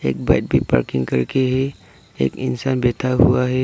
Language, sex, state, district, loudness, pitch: Hindi, male, Arunachal Pradesh, Lower Dibang Valley, -19 LUFS, 125 Hz